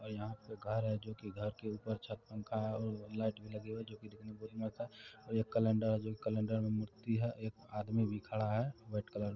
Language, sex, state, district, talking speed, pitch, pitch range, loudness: Maithili, male, Bihar, Supaul, 270 wpm, 110 Hz, 105-110 Hz, -40 LUFS